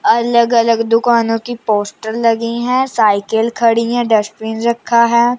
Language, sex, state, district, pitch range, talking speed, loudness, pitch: Hindi, female, Chandigarh, Chandigarh, 225-235 Hz, 145 wpm, -14 LUFS, 230 Hz